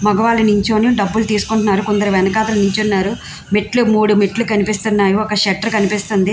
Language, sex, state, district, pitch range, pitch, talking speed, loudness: Telugu, female, Andhra Pradesh, Visakhapatnam, 200-220 Hz, 210 Hz, 130 wpm, -15 LUFS